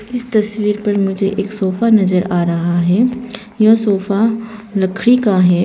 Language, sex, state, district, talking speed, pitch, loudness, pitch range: Hindi, female, Arunachal Pradesh, Papum Pare, 160 wpm, 210 Hz, -15 LUFS, 190-220 Hz